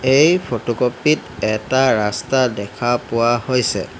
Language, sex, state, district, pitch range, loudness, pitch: Assamese, male, Assam, Hailakandi, 110-130 Hz, -18 LUFS, 120 Hz